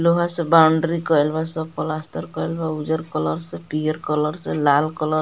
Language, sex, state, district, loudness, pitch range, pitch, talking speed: Bhojpuri, female, Bihar, Muzaffarpur, -21 LUFS, 150-165 Hz, 155 Hz, 205 wpm